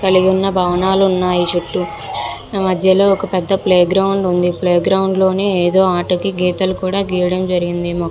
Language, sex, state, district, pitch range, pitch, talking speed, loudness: Telugu, female, Andhra Pradesh, Visakhapatnam, 180-190 Hz, 185 Hz, 150 wpm, -15 LUFS